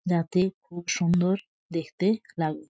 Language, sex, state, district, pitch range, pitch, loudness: Bengali, female, West Bengal, Jhargram, 165-190 Hz, 175 Hz, -27 LUFS